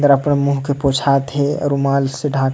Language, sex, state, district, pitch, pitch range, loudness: Sadri, male, Chhattisgarh, Jashpur, 140 Hz, 135-145 Hz, -17 LUFS